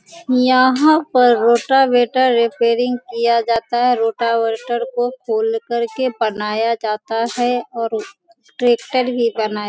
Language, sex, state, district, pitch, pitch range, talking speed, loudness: Hindi, female, Bihar, Sitamarhi, 240 Hz, 230-255 Hz, 120 wpm, -17 LUFS